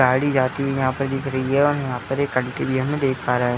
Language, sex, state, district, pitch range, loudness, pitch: Hindi, male, Uttar Pradesh, Etah, 130-140 Hz, -21 LUFS, 135 Hz